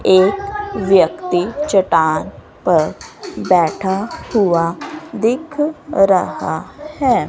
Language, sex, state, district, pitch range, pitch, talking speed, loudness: Hindi, female, Haryana, Rohtak, 180-295 Hz, 200 Hz, 75 wpm, -16 LUFS